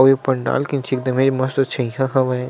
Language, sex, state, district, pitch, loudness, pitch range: Chhattisgarhi, male, Chhattisgarh, Sarguja, 130 Hz, -19 LUFS, 130-135 Hz